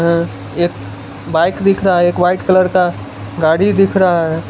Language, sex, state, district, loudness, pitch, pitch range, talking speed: Hindi, male, Gujarat, Valsad, -14 LUFS, 175 Hz, 160-185 Hz, 185 wpm